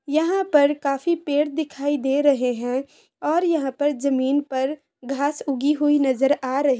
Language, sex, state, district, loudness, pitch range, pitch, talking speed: Hindi, female, Bihar, Samastipur, -22 LUFS, 270-295 Hz, 285 Hz, 175 wpm